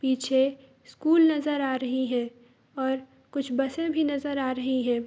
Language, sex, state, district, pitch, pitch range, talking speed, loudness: Hindi, female, Bihar, East Champaran, 265 Hz, 255-285 Hz, 165 wpm, -27 LUFS